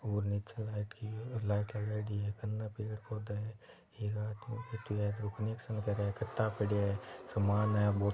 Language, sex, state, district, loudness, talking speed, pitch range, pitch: Marwari, male, Rajasthan, Nagaur, -37 LUFS, 170 wpm, 105-110 Hz, 105 Hz